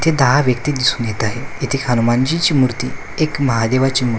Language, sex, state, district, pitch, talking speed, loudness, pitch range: Marathi, male, Maharashtra, Washim, 130 Hz, 170 wpm, -17 LUFS, 120-140 Hz